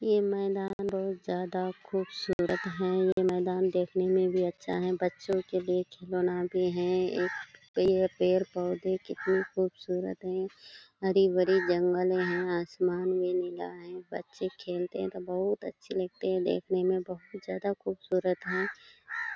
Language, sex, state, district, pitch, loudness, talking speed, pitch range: Hindi, female, Bihar, Kishanganj, 185 Hz, -30 LUFS, 145 wpm, 180-190 Hz